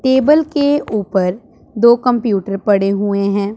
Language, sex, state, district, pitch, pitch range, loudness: Hindi, female, Punjab, Pathankot, 215 Hz, 200-260 Hz, -15 LUFS